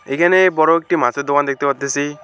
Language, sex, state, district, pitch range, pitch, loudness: Bengali, male, West Bengal, Alipurduar, 140-165 Hz, 145 Hz, -16 LUFS